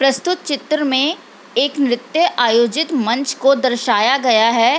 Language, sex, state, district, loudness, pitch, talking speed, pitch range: Hindi, female, Bihar, Lakhisarai, -16 LUFS, 270 Hz, 140 wpm, 240-305 Hz